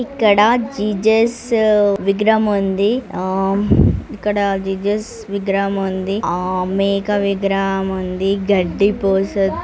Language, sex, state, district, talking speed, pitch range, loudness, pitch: Telugu, female, Andhra Pradesh, Srikakulam, 95 wpm, 195-210 Hz, -17 LUFS, 200 Hz